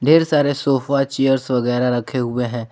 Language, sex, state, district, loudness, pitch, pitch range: Hindi, male, Jharkhand, Garhwa, -18 LUFS, 135 Hz, 125-140 Hz